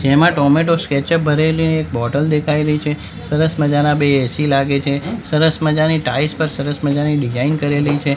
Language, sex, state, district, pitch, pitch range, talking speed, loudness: Gujarati, male, Gujarat, Gandhinagar, 150 Hz, 140-155 Hz, 175 wpm, -16 LUFS